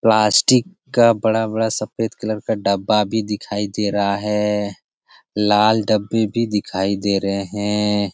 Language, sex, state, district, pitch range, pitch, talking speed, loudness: Hindi, male, Bihar, Jamui, 100-110 Hz, 105 Hz, 140 wpm, -19 LUFS